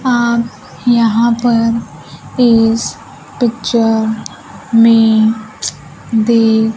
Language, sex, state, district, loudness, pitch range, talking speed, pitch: Hindi, female, Bihar, Kaimur, -13 LUFS, 220-235 Hz, 55 wpm, 230 Hz